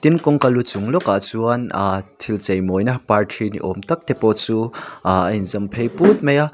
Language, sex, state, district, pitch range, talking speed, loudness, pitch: Mizo, male, Mizoram, Aizawl, 100-135 Hz, 210 wpm, -19 LUFS, 110 Hz